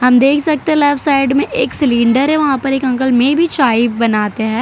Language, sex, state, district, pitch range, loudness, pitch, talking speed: Hindi, female, Gujarat, Valsad, 240-290 Hz, -13 LUFS, 270 Hz, 235 wpm